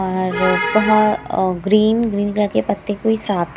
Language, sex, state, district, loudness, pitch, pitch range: Hindi, female, Himachal Pradesh, Shimla, -17 LUFS, 205 Hz, 185-215 Hz